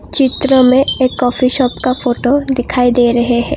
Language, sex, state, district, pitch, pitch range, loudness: Hindi, female, Assam, Kamrup Metropolitan, 255 Hz, 245-265 Hz, -13 LUFS